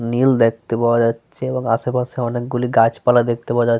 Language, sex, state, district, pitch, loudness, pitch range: Bengali, male, Jharkhand, Sahebganj, 120 Hz, -18 LUFS, 115-125 Hz